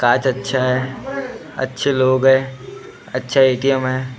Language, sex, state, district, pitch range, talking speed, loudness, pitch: Hindi, male, Maharashtra, Gondia, 130-135 Hz, 155 wpm, -18 LUFS, 130 Hz